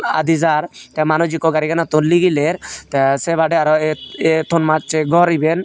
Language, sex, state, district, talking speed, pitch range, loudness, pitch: Chakma, male, Tripura, Unakoti, 160 wpm, 155-165 Hz, -16 LUFS, 160 Hz